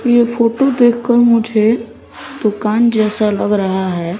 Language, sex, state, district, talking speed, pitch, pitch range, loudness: Hindi, male, Bihar, West Champaran, 130 wpm, 230 Hz, 210-240 Hz, -14 LUFS